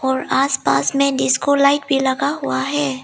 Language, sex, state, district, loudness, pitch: Hindi, female, Arunachal Pradesh, Lower Dibang Valley, -17 LUFS, 270 Hz